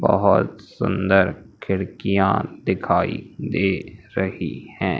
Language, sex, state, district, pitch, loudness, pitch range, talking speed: Hindi, male, Madhya Pradesh, Umaria, 95 Hz, -22 LUFS, 90-95 Hz, 85 wpm